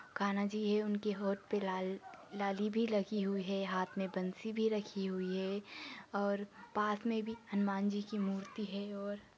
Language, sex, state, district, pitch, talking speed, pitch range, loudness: Hindi, female, Chhattisgarh, Kabirdham, 200 Hz, 185 wpm, 195-210 Hz, -38 LUFS